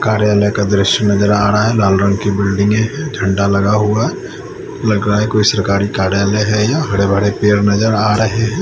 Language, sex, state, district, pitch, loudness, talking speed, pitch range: Hindi, male, Chandigarh, Chandigarh, 105 Hz, -14 LUFS, 210 wpm, 100-105 Hz